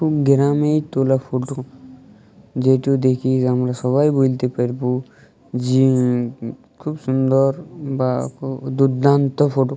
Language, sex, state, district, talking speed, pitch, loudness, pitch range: Bengali, male, Jharkhand, Jamtara, 110 wpm, 130 Hz, -19 LUFS, 125-140 Hz